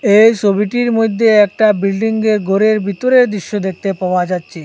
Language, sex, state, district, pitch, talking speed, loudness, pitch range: Bengali, male, Assam, Hailakandi, 210 Hz, 140 wpm, -13 LUFS, 195-220 Hz